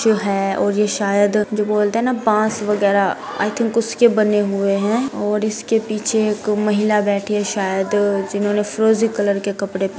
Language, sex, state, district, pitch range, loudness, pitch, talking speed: Hindi, female, Bihar, Gopalganj, 200-215 Hz, -18 LUFS, 210 Hz, 180 wpm